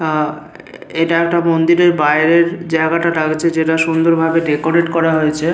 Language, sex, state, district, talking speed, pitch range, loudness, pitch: Bengali, male, West Bengal, Paschim Medinipur, 140 wpm, 155-170 Hz, -14 LUFS, 165 Hz